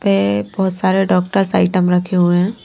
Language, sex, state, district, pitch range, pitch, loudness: Hindi, female, Maharashtra, Washim, 175-190 Hz, 180 Hz, -15 LUFS